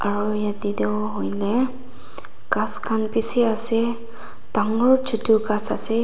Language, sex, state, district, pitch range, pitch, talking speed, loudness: Nagamese, female, Nagaland, Dimapur, 210-235 Hz, 225 Hz, 120 wpm, -20 LUFS